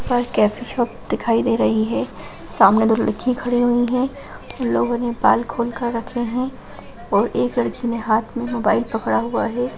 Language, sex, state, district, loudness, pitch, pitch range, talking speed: Bhojpuri, female, Bihar, Saran, -20 LUFS, 235 Hz, 225-245 Hz, 185 wpm